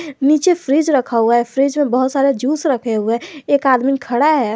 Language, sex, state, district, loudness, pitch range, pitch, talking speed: Hindi, male, Jharkhand, Garhwa, -16 LUFS, 245-295 Hz, 275 Hz, 225 wpm